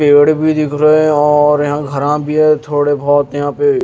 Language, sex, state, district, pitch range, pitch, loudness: Hindi, male, Haryana, Jhajjar, 145-155 Hz, 150 Hz, -12 LUFS